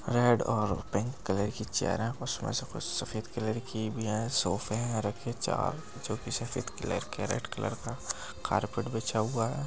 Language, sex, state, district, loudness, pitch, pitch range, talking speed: Hindi, male, Bihar, Begusarai, -33 LUFS, 115 Hz, 105-120 Hz, 195 wpm